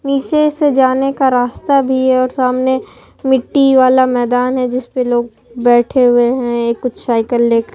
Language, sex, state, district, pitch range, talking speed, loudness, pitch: Hindi, female, Bihar, Katihar, 240-265 Hz, 165 wpm, -13 LUFS, 255 Hz